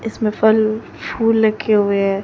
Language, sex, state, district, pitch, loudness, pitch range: Hindi, female, Chhattisgarh, Raipur, 215 Hz, -16 LUFS, 210-225 Hz